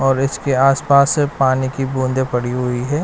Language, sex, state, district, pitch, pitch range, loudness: Hindi, male, Bihar, West Champaran, 135 Hz, 130-140 Hz, -17 LUFS